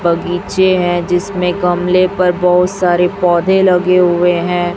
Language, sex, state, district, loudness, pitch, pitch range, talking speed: Hindi, female, Chhattisgarh, Raipur, -13 LUFS, 180 Hz, 175-185 Hz, 140 wpm